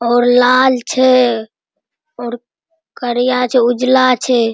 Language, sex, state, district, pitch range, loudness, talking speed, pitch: Maithili, female, Bihar, Araria, 240-255 Hz, -12 LUFS, 120 wpm, 250 Hz